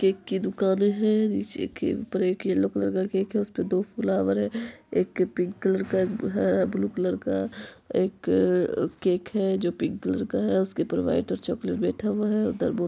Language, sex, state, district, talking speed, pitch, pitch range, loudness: Hindi, female, Bihar, Vaishali, 185 wpm, 190 Hz, 175-205 Hz, -26 LUFS